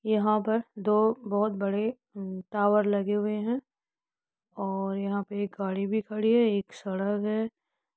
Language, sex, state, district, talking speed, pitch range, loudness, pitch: Hindi, female, Uttar Pradesh, Jyotiba Phule Nagar, 150 wpm, 200-220 Hz, -28 LUFS, 210 Hz